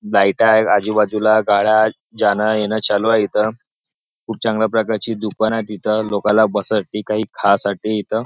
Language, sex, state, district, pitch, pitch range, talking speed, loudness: Marathi, male, Maharashtra, Nagpur, 110 Hz, 105-110 Hz, 145 wpm, -17 LUFS